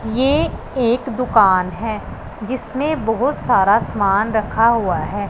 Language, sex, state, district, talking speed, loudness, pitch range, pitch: Hindi, female, Punjab, Pathankot, 125 wpm, -17 LUFS, 200-250 Hz, 225 Hz